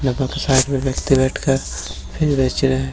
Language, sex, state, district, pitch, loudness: Hindi, male, Chhattisgarh, Bilaspur, 130 Hz, -19 LUFS